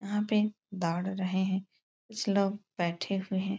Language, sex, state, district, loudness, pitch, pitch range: Hindi, female, Uttar Pradesh, Etah, -31 LUFS, 195 Hz, 190-205 Hz